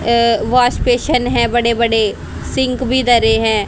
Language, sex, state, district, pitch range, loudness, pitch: Hindi, female, Haryana, Charkhi Dadri, 225-250 Hz, -14 LUFS, 235 Hz